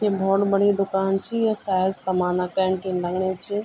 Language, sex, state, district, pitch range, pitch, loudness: Garhwali, female, Uttarakhand, Tehri Garhwal, 185-200 Hz, 195 Hz, -23 LUFS